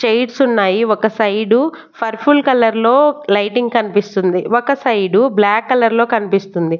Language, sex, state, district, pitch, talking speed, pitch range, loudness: Telugu, female, Andhra Pradesh, Annamaya, 230 Hz, 130 wpm, 205-245 Hz, -14 LUFS